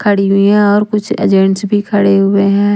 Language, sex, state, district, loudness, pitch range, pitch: Hindi, female, Haryana, Rohtak, -11 LUFS, 195-205 Hz, 205 Hz